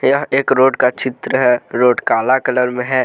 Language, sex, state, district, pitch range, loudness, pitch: Hindi, male, Jharkhand, Deoghar, 125-135 Hz, -15 LUFS, 130 Hz